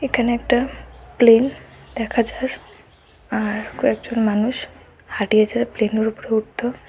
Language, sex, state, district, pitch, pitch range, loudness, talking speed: Bengali, female, Assam, Hailakandi, 235 Hz, 220-245 Hz, -20 LUFS, 115 wpm